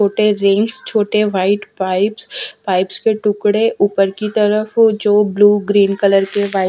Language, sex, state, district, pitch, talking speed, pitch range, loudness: Hindi, female, Punjab, Fazilka, 205 Hz, 150 wpm, 195-215 Hz, -15 LUFS